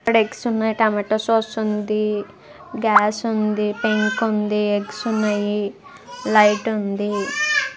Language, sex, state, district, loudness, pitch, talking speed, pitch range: Telugu, female, Andhra Pradesh, Guntur, -20 LUFS, 215 Hz, 125 wpm, 210-225 Hz